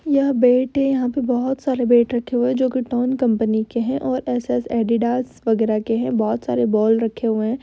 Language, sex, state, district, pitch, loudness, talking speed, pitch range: Hindi, female, Uttar Pradesh, Hamirpur, 245 Hz, -19 LUFS, 230 wpm, 225-255 Hz